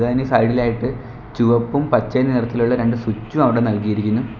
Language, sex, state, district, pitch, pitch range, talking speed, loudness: Malayalam, male, Kerala, Kollam, 120 Hz, 115-125 Hz, 125 wpm, -18 LUFS